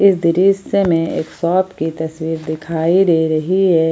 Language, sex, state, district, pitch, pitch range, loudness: Hindi, female, Jharkhand, Ranchi, 165 Hz, 160-185 Hz, -16 LUFS